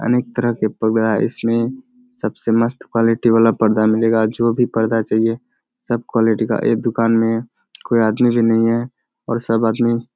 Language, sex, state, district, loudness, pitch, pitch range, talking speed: Hindi, male, Bihar, Kishanganj, -17 LUFS, 115 Hz, 110-120 Hz, 175 wpm